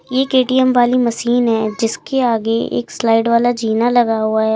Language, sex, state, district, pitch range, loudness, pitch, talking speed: Hindi, female, Uttar Pradesh, Lalitpur, 225-245 Hz, -15 LUFS, 235 Hz, 185 wpm